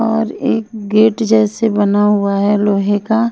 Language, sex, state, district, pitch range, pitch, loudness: Hindi, female, Himachal Pradesh, Shimla, 205-225 Hz, 215 Hz, -14 LUFS